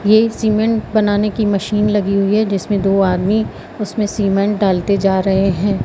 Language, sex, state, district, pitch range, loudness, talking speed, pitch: Hindi, female, Madhya Pradesh, Katni, 195-215 Hz, -16 LUFS, 175 wpm, 205 Hz